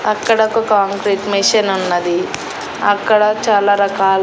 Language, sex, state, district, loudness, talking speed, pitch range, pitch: Telugu, female, Andhra Pradesh, Annamaya, -15 LUFS, 115 wpm, 195-215 Hz, 205 Hz